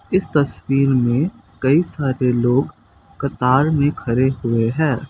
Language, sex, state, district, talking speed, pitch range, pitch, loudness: Hindi, male, Assam, Kamrup Metropolitan, 130 wpm, 120-145 Hz, 130 Hz, -18 LUFS